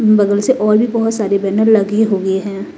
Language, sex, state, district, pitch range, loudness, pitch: Hindi, female, Himachal Pradesh, Shimla, 200-220 Hz, -14 LUFS, 210 Hz